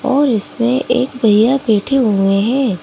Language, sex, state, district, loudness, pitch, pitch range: Hindi, female, Madhya Pradesh, Bhopal, -14 LUFS, 245 Hz, 215-260 Hz